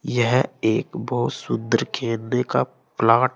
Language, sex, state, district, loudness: Hindi, male, Uttar Pradesh, Saharanpur, -22 LUFS